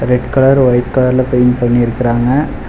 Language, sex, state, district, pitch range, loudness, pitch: Tamil, male, Tamil Nadu, Chennai, 120-130 Hz, -12 LUFS, 125 Hz